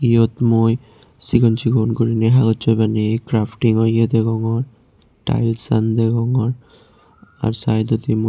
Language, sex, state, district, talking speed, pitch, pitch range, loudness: Chakma, male, Tripura, West Tripura, 110 wpm, 115 Hz, 110-120 Hz, -17 LUFS